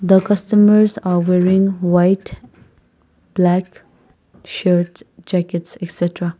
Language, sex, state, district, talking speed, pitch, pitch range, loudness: English, female, Nagaland, Kohima, 85 wpm, 180 Hz, 175-195 Hz, -16 LUFS